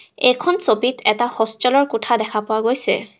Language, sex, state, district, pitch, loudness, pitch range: Assamese, female, Assam, Kamrup Metropolitan, 240 Hz, -18 LUFS, 220-255 Hz